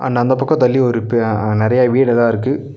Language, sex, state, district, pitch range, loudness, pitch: Tamil, male, Tamil Nadu, Nilgiris, 115-130 Hz, -15 LUFS, 125 Hz